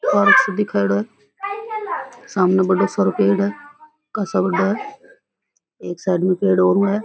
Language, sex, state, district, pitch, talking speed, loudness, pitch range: Rajasthani, female, Rajasthan, Churu, 200 Hz, 155 wpm, -18 LUFS, 185-310 Hz